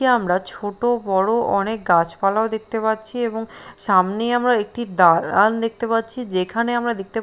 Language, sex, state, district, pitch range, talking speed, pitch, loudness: Bengali, female, Bihar, Katihar, 195-235 Hz, 160 wpm, 220 Hz, -20 LUFS